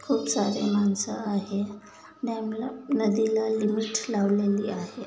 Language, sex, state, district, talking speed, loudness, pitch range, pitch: Marathi, female, Maharashtra, Dhule, 105 wpm, -27 LUFS, 205-220 Hz, 215 Hz